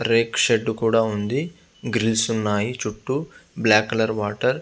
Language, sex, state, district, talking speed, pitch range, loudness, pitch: Telugu, male, Andhra Pradesh, Visakhapatnam, 145 wpm, 110-120 Hz, -22 LUFS, 115 Hz